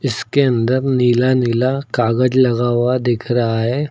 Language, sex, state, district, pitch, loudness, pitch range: Hindi, male, Uttar Pradesh, Lucknow, 125 Hz, -16 LUFS, 120-130 Hz